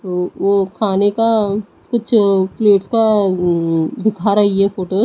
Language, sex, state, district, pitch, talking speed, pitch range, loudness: Hindi, female, Odisha, Nuapada, 200 Hz, 155 wpm, 190-215 Hz, -15 LUFS